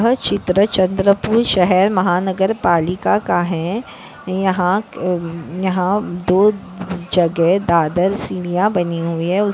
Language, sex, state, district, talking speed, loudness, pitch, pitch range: Hindi, female, Maharashtra, Chandrapur, 120 wpm, -17 LUFS, 185 Hz, 175-200 Hz